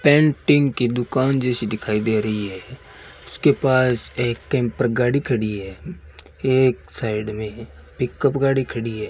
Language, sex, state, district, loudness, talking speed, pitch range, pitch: Hindi, male, Rajasthan, Bikaner, -21 LUFS, 150 wpm, 110-130 Hz, 120 Hz